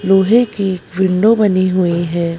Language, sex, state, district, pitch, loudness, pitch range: Hindi, female, Madhya Pradesh, Bhopal, 190 Hz, -14 LUFS, 180-200 Hz